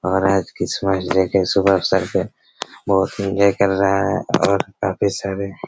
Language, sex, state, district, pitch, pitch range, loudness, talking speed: Hindi, male, Chhattisgarh, Raigarh, 95 Hz, 95-100 Hz, -19 LUFS, 180 wpm